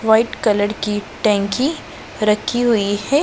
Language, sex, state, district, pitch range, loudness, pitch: Hindi, female, Punjab, Pathankot, 205-240 Hz, -18 LUFS, 215 Hz